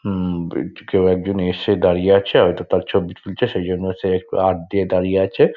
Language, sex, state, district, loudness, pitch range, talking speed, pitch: Bengali, male, West Bengal, Dakshin Dinajpur, -18 LUFS, 90-100 Hz, 205 wpm, 95 Hz